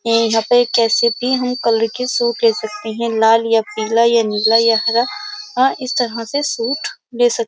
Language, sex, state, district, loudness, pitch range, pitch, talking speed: Hindi, female, Uttar Pradesh, Jyotiba Phule Nagar, -16 LUFS, 225-250 Hz, 230 Hz, 215 wpm